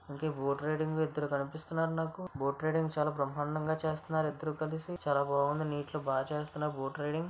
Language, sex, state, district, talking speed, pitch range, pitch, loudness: Telugu, female, Andhra Pradesh, Visakhapatnam, 155 wpm, 145-155 Hz, 150 Hz, -34 LUFS